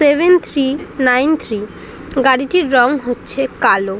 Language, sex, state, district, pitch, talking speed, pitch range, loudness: Bengali, female, West Bengal, Dakshin Dinajpur, 270 Hz, 120 wpm, 245-290 Hz, -15 LUFS